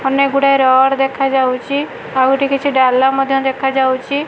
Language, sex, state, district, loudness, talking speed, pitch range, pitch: Odia, female, Odisha, Malkangiri, -14 LUFS, 140 wpm, 265-275 Hz, 270 Hz